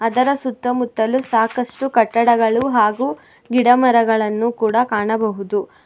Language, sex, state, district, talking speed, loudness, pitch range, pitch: Kannada, female, Karnataka, Bangalore, 80 wpm, -17 LUFS, 220-250 Hz, 235 Hz